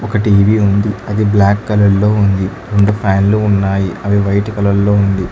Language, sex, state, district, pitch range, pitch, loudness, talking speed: Telugu, male, Telangana, Hyderabad, 100-105 Hz, 100 Hz, -13 LUFS, 180 wpm